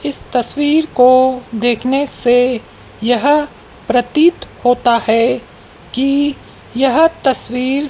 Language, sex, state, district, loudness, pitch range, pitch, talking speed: Hindi, female, Madhya Pradesh, Dhar, -14 LUFS, 245-290 Hz, 255 Hz, 90 wpm